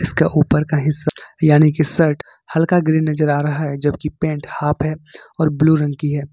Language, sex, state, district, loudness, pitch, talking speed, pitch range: Hindi, male, Jharkhand, Ranchi, -17 LUFS, 150 Hz, 210 wpm, 150-155 Hz